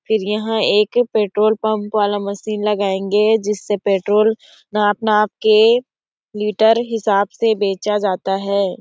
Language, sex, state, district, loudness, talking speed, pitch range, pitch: Hindi, female, Chhattisgarh, Sarguja, -17 LUFS, 130 wpm, 205-220 Hz, 210 Hz